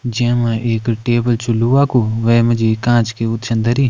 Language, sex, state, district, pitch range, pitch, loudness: Kumaoni, male, Uttarakhand, Uttarkashi, 115-120 Hz, 115 Hz, -15 LUFS